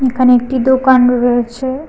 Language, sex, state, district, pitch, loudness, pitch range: Bengali, female, Tripura, West Tripura, 255 Hz, -12 LUFS, 245-260 Hz